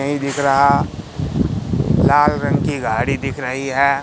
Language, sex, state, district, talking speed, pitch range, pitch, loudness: Hindi, male, Madhya Pradesh, Katni, 150 wpm, 135-145 Hz, 140 Hz, -17 LUFS